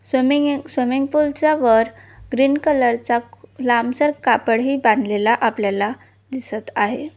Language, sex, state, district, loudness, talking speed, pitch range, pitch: Marathi, female, Maharashtra, Solapur, -18 LUFS, 100 wpm, 230-285 Hz, 255 Hz